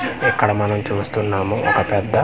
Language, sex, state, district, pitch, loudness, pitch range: Telugu, male, Andhra Pradesh, Manyam, 105 Hz, -19 LUFS, 100-105 Hz